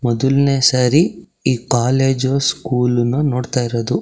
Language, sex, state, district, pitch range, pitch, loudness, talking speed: Kannada, male, Karnataka, Shimoga, 120-135 Hz, 130 Hz, -16 LUFS, 90 wpm